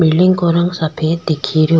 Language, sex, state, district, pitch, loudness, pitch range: Rajasthani, female, Rajasthan, Churu, 165 Hz, -15 LUFS, 155-170 Hz